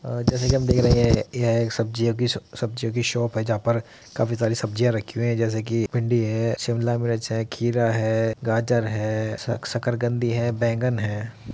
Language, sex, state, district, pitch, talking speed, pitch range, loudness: Hindi, male, Uttar Pradesh, Muzaffarnagar, 115 Hz, 195 wpm, 115-120 Hz, -23 LUFS